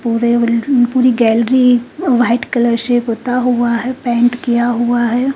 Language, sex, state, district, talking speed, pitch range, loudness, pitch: Hindi, female, Bihar, Katihar, 170 wpm, 235-250 Hz, -14 LUFS, 240 Hz